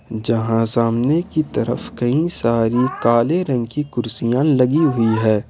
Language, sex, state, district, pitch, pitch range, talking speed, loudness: Hindi, male, Jharkhand, Ranchi, 120 Hz, 115-145 Hz, 140 wpm, -18 LUFS